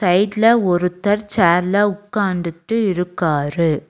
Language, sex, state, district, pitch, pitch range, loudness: Tamil, female, Tamil Nadu, Nilgiris, 185 Hz, 170-205 Hz, -17 LUFS